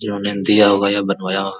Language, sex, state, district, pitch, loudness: Hindi, male, Bihar, Araria, 100 Hz, -16 LUFS